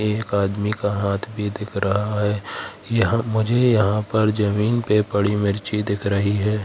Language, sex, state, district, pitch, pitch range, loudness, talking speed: Hindi, male, Madhya Pradesh, Katni, 105 Hz, 100-110 Hz, -21 LUFS, 170 wpm